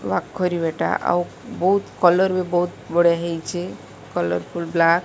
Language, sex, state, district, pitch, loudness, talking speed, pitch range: Odia, female, Odisha, Malkangiri, 175 Hz, -21 LUFS, 140 wpm, 165-180 Hz